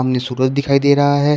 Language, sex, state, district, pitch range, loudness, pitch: Hindi, male, Uttar Pradesh, Shamli, 130-145 Hz, -15 LUFS, 140 Hz